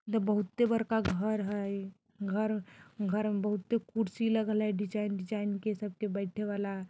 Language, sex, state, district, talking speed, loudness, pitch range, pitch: Bajjika, female, Bihar, Vaishali, 165 wpm, -33 LUFS, 200-215 Hz, 210 Hz